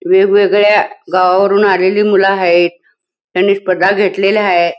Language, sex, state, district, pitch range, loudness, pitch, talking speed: Marathi, female, Karnataka, Belgaum, 185-205 Hz, -11 LUFS, 195 Hz, 115 wpm